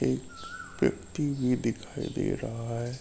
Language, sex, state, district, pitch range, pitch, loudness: Hindi, male, Uttar Pradesh, Ghazipur, 115-130 Hz, 115 Hz, -31 LUFS